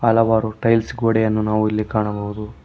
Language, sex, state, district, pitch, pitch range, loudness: Kannada, male, Karnataka, Koppal, 110 Hz, 110-115 Hz, -19 LUFS